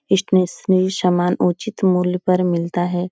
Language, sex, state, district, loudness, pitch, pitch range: Hindi, female, Bihar, Supaul, -18 LUFS, 180 Hz, 175-185 Hz